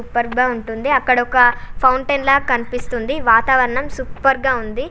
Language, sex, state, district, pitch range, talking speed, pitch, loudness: Telugu, female, Telangana, Nalgonda, 240-270 Hz, 135 wpm, 255 Hz, -16 LUFS